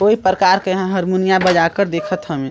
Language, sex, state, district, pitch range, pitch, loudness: Chhattisgarhi, male, Chhattisgarh, Sarguja, 165-190 Hz, 185 Hz, -16 LUFS